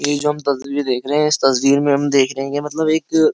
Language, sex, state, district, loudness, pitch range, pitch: Hindi, male, Uttar Pradesh, Jyotiba Phule Nagar, -17 LUFS, 135-150 Hz, 145 Hz